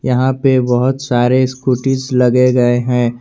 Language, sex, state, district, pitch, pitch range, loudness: Hindi, male, Jharkhand, Garhwa, 125 Hz, 125-130 Hz, -14 LUFS